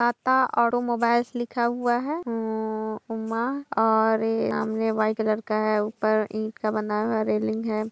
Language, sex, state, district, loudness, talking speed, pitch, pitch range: Hindi, female, Jharkhand, Jamtara, -25 LUFS, 180 wpm, 220 Hz, 215-235 Hz